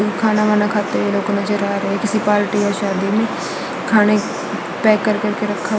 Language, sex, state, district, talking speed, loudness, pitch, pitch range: Hindi, female, Chhattisgarh, Raipur, 185 wpm, -17 LUFS, 210 Hz, 205-215 Hz